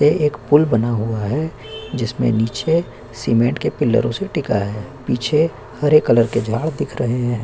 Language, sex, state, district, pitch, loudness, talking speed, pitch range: Hindi, male, Chhattisgarh, Korba, 120 Hz, -19 LUFS, 175 wpm, 115-150 Hz